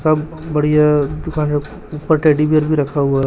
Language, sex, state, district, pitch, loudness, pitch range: Hindi, male, Chhattisgarh, Raipur, 150 Hz, -16 LUFS, 150-155 Hz